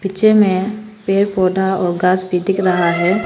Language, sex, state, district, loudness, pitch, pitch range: Hindi, female, Arunachal Pradesh, Papum Pare, -15 LUFS, 190 Hz, 180-200 Hz